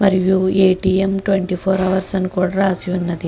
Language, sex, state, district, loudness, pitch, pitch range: Telugu, female, Andhra Pradesh, Guntur, -17 LUFS, 190 Hz, 185-190 Hz